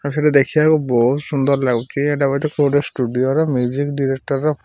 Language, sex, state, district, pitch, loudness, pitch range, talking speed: Odia, male, Odisha, Malkangiri, 140 Hz, -17 LUFS, 130-145 Hz, 180 wpm